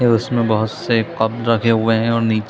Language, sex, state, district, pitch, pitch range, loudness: Hindi, male, Chhattisgarh, Bilaspur, 115 Hz, 110-115 Hz, -17 LUFS